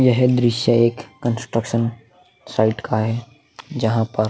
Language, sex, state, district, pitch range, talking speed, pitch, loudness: Hindi, male, Uttar Pradesh, Muzaffarnagar, 110-120 Hz, 140 wpm, 115 Hz, -20 LUFS